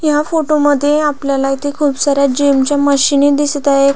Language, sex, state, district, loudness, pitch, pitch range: Marathi, female, Maharashtra, Pune, -13 LUFS, 285 Hz, 280-295 Hz